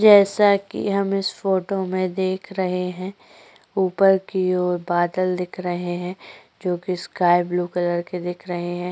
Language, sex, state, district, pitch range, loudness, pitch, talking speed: Hindi, female, Chhattisgarh, Korba, 175-195 Hz, -22 LUFS, 185 Hz, 170 wpm